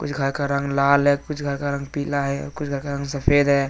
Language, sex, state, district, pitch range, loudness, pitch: Hindi, male, Jharkhand, Deoghar, 140-145 Hz, -22 LUFS, 140 Hz